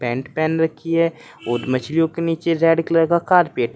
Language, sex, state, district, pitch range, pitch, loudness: Hindi, male, Uttar Pradesh, Saharanpur, 135-165 Hz, 165 Hz, -19 LUFS